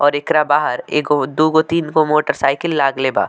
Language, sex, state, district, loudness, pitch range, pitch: Bhojpuri, male, Bihar, Muzaffarpur, -16 LUFS, 140-155 Hz, 150 Hz